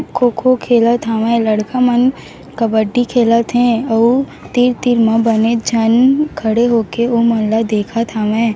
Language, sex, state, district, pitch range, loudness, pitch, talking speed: Chhattisgarhi, female, Chhattisgarh, Raigarh, 225-245 Hz, -14 LUFS, 235 Hz, 125 wpm